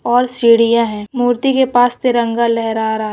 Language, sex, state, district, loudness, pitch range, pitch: Hindi, female, West Bengal, Jalpaiguri, -14 LUFS, 230-245 Hz, 235 Hz